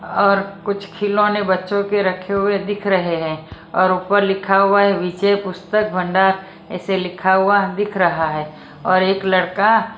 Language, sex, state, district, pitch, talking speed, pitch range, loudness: Hindi, female, Maharashtra, Mumbai Suburban, 195 Hz, 155 wpm, 185-200 Hz, -17 LUFS